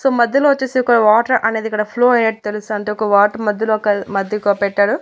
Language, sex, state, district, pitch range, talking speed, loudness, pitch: Telugu, female, Andhra Pradesh, Annamaya, 210-240 Hz, 205 wpm, -16 LUFS, 215 Hz